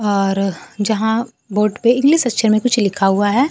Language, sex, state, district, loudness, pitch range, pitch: Hindi, female, Bihar, Kaimur, -16 LUFS, 200-240 Hz, 215 Hz